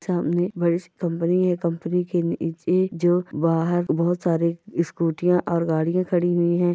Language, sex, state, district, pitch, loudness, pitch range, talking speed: Hindi, female, Goa, North and South Goa, 175 Hz, -22 LUFS, 170-180 Hz, 150 wpm